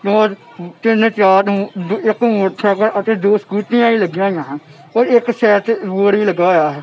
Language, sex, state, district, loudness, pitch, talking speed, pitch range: Punjabi, male, Punjab, Kapurthala, -14 LUFS, 205 Hz, 160 wpm, 190-220 Hz